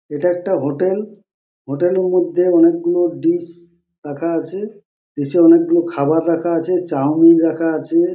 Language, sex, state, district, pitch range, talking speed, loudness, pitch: Bengali, male, West Bengal, Purulia, 165-180 Hz, 140 wpm, -16 LUFS, 170 Hz